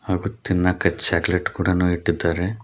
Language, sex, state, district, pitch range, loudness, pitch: Kannada, male, Karnataka, Koppal, 90-95 Hz, -21 LUFS, 90 Hz